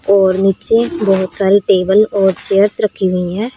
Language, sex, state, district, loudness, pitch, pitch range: Hindi, female, Haryana, Rohtak, -13 LUFS, 195 Hz, 190-205 Hz